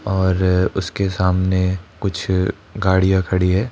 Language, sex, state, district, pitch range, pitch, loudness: Hindi, male, Rajasthan, Jaipur, 90-95 Hz, 95 Hz, -19 LUFS